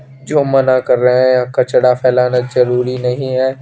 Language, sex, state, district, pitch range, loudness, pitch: Hindi, male, Chandigarh, Chandigarh, 125-130 Hz, -13 LUFS, 125 Hz